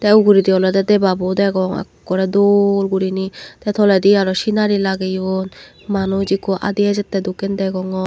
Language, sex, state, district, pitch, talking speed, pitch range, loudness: Chakma, female, Tripura, Dhalai, 195 Hz, 125 wpm, 190-205 Hz, -16 LUFS